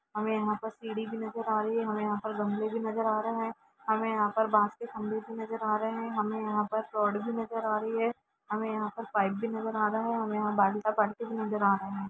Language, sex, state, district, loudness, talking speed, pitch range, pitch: Hindi, female, Jharkhand, Jamtara, -31 LUFS, 275 wpm, 210-225 Hz, 220 Hz